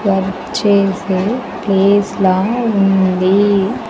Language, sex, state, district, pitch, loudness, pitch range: Telugu, female, Andhra Pradesh, Sri Satya Sai, 195 Hz, -14 LUFS, 190-205 Hz